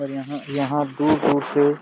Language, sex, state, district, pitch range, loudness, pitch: Hindi, male, Jharkhand, Jamtara, 140-145 Hz, -22 LUFS, 145 Hz